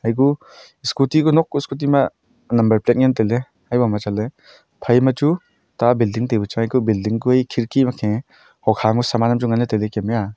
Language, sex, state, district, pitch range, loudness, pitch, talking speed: Wancho, male, Arunachal Pradesh, Longding, 110-130 Hz, -19 LUFS, 120 Hz, 195 wpm